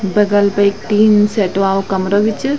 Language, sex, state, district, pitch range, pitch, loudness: Garhwali, female, Uttarakhand, Tehri Garhwal, 195-210 Hz, 205 Hz, -14 LUFS